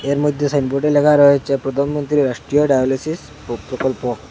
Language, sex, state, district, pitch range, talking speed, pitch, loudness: Bengali, male, Assam, Hailakandi, 135-145 Hz, 140 wpm, 140 Hz, -17 LUFS